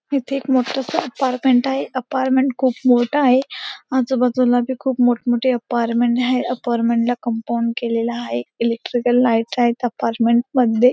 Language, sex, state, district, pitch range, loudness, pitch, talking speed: Marathi, female, Maharashtra, Pune, 235-260 Hz, -19 LUFS, 245 Hz, 135 wpm